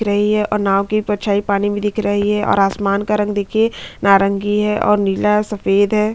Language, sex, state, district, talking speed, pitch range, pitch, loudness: Hindi, female, Chhattisgarh, Bastar, 225 wpm, 200-210 Hz, 205 Hz, -16 LUFS